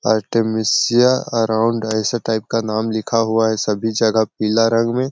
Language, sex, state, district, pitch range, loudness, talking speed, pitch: Hindi, male, Chhattisgarh, Sarguja, 110-115 Hz, -17 LUFS, 165 wpm, 110 Hz